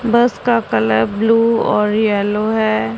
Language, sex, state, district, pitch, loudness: Hindi, female, Punjab, Pathankot, 215 Hz, -15 LUFS